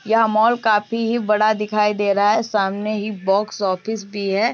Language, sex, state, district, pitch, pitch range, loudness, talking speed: Hindi, female, Uttar Pradesh, Muzaffarnagar, 210 Hz, 200-220 Hz, -19 LUFS, 200 wpm